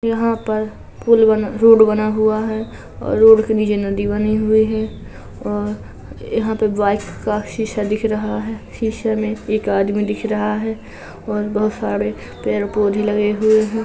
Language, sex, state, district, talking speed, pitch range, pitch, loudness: Hindi, female, Uttar Pradesh, Jalaun, 165 wpm, 205-220 Hz, 215 Hz, -18 LUFS